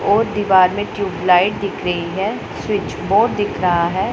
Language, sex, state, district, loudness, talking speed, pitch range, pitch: Hindi, female, Punjab, Pathankot, -17 LUFS, 175 wpm, 180-205 Hz, 190 Hz